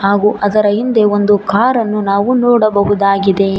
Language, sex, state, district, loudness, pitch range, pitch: Kannada, female, Karnataka, Koppal, -12 LUFS, 200-215 Hz, 205 Hz